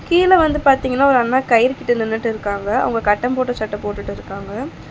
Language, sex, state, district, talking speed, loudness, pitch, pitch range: Tamil, female, Tamil Nadu, Chennai, 185 wpm, -17 LUFS, 245 Hz, 220-265 Hz